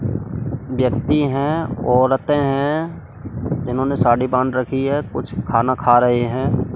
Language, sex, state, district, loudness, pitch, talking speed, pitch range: Hindi, male, Delhi, New Delhi, -19 LUFS, 130 Hz, 125 wpm, 125-140 Hz